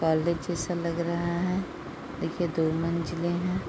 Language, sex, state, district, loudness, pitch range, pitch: Hindi, female, Uttar Pradesh, Deoria, -29 LUFS, 165-175 Hz, 170 Hz